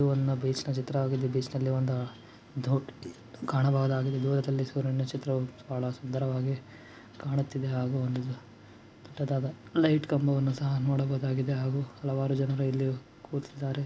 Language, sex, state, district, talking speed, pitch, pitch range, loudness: Kannada, male, Karnataka, Dharwad, 105 wpm, 135 Hz, 130-135 Hz, -30 LUFS